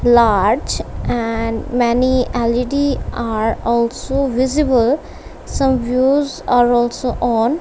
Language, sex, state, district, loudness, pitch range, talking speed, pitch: English, female, Punjab, Kapurthala, -17 LUFS, 235-265 Hz, 95 wpm, 245 Hz